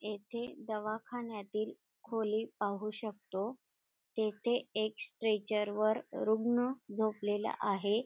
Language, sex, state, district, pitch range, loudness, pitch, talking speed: Marathi, female, Maharashtra, Dhule, 210-225 Hz, -36 LUFS, 215 Hz, 90 wpm